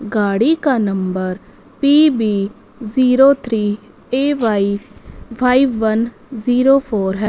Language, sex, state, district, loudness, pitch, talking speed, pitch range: Hindi, female, Punjab, Fazilka, -16 LUFS, 230 Hz, 100 wpm, 205-260 Hz